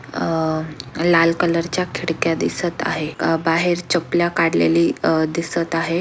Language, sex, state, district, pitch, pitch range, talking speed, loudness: Marathi, female, Maharashtra, Aurangabad, 165 Hz, 160-170 Hz, 140 wpm, -19 LUFS